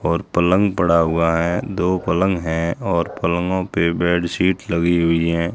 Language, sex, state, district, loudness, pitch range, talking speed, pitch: Hindi, male, Rajasthan, Jaisalmer, -19 LUFS, 85-95 Hz, 160 wpm, 85 Hz